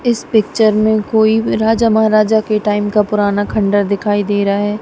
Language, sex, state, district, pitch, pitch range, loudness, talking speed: Hindi, female, Punjab, Kapurthala, 215 Hz, 205-220 Hz, -14 LUFS, 200 wpm